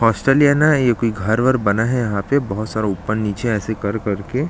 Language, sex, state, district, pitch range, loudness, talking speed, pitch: Hindi, male, Chhattisgarh, Jashpur, 105-130 Hz, -18 LUFS, 280 wpm, 110 Hz